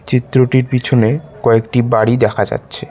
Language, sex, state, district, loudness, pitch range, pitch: Bengali, male, West Bengal, Cooch Behar, -14 LUFS, 115-130 Hz, 125 Hz